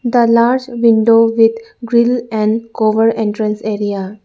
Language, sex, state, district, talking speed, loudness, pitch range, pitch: English, female, Arunachal Pradesh, Lower Dibang Valley, 125 wpm, -13 LUFS, 215-235 Hz, 225 Hz